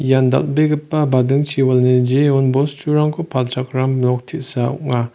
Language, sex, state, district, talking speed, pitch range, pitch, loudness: Garo, male, Meghalaya, West Garo Hills, 105 wpm, 125-145 Hz, 135 Hz, -17 LUFS